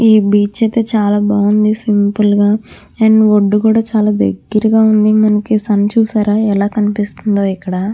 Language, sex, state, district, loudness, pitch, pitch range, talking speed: Telugu, female, Andhra Pradesh, Krishna, -12 LUFS, 210 Hz, 205-220 Hz, 145 wpm